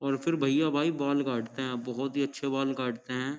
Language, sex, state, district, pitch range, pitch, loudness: Hindi, male, Uttar Pradesh, Jyotiba Phule Nagar, 130-140 Hz, 135 Hz, -30 LUFS